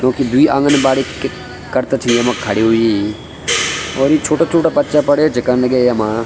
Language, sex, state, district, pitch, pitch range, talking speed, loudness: Garhwali, male, Uttarakhand, Tehri Garhwal, 125 Hz, 115-145 Hz, 180 wpm, -14 LUFS